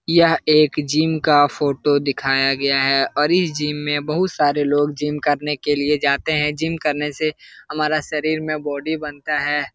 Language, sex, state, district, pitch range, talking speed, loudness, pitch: Hindi, male, Bihar, Jahanabad, 145-155 Hz, 190 wpm, -19 LUFS, 150 Hz